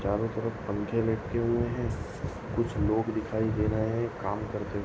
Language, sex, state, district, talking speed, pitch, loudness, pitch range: Hindi, male, Goa, North and South Goa, 185 wpm, 110 Hz, -30 LUFS, 105-115 Hz